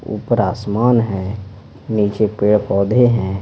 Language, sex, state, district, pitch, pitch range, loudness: Hindi, male, Bihar, Patna, 105 Hz, 100-115 Hz, -17 LUFS